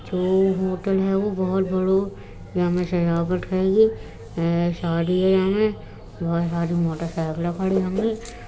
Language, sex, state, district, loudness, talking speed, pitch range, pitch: Hindi, female, Uttar Pradesh, Etah, -22 LUFS, 125 wpm, 170-190 Hz, 185 Hz